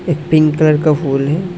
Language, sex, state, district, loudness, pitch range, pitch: Hindi, male, Assam, Hailakandi, -13 LUFS, 150-160 Hz, 155 Hz